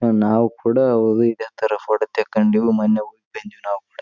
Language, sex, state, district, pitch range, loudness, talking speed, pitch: Kannada, male, Karnataka, Raichur, 110-115 Hz, -19 LUFS, 195 wpm, 110 Hz